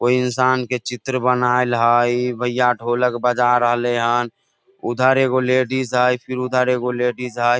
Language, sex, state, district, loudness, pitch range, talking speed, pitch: Maithili, male, Bihar, Samastipur, -18 LUFS, 120-125 Hz, 165 wpm, 125 Hz